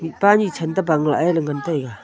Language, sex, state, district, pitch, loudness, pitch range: Wancho, female, Arunachal Pradesh, Longding, 160 Hz, -19 LUFS, 150-175 Hz